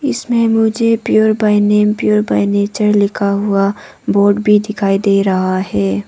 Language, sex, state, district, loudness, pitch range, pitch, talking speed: Hindi, female, Arunachal Pradesh, Papum Pare, -13 LUFS, 195-215 Hz, 205 Hz, 160 wpm